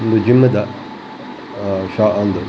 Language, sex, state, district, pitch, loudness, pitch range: Tulu, male, Karnataka, Dakshina Kannada, 105 Hz, -16 LUFS, 100-115 Hz